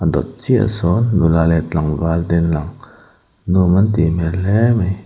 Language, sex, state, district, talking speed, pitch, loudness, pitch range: Mizo, male, Mizoram, Aizawl, 200 wpm, 85 Hz, -16 LUFS, 80-100 Hz